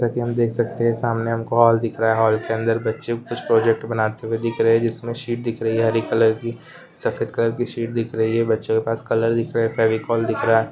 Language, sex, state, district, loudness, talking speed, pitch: Hindi, male, Rajasthan, Nagaur, -21 LUFS, 280 wpm, 115 Hz